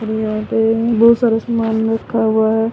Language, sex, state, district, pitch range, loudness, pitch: Hindi, female, Haryana, Rohtak, 220-230 Hz, -15 LUFS, 225 Hz